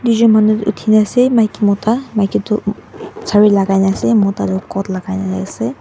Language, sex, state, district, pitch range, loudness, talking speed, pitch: Nagamese, female, Nagaland, Dimapur, 195-225 Hz, -14 LUFS, 195 wpm, 210 Hz